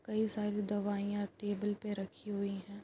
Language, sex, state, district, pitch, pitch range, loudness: Hindi, female, Uttar Pradesh, Jalaun, 205 Hz, 200-210 Hz, -37 LUFS